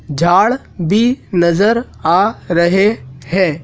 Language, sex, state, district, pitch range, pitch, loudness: Hindi, male, Madhya Pradesh, Dhar, 170-215 Hz, 180 Hz, -14 LUFS